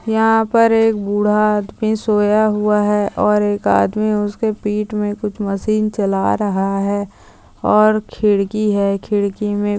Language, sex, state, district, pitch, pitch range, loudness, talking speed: Hindi, female, Jharkhand, Sahebganj, 210 Hz, 205-215 Hz, -16 LUFS, 145 wpm